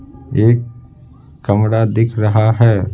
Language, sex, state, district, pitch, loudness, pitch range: Hindi, male, Bihar, Patna, 110 Hz, -14 LUFS, 110-120 Hz